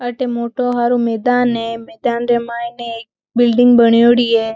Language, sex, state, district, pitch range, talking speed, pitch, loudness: Marwari, female, Rajasthan, Nagaur, 230-245 Hz, 160 wpm, 235 Hz, -15 LUFS